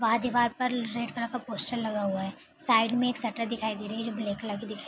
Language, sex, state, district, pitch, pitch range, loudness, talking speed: Hindi, female, Bihar, Araria, 230 Hz, 215-240 Hz, -30 LUFS, 295 wpm